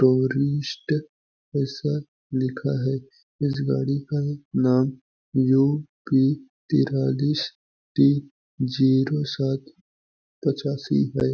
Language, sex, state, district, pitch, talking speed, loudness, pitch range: Hindi, male, Chhattisgarh, Balrampur, 135 Hz, 80 wpm, -24 LUFS, 130-145 Hz